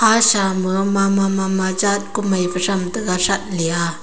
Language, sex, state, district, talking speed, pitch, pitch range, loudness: Wancho, female, Arunachal Pradesh, Longding, 165 wpm, 195 Hz, 185-200 Hz, -18 LUFS